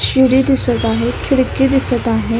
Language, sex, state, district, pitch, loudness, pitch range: Marathi, female, Maharashtra, Solapur, 255 Hz, -14 LUFS, 220-270 Hz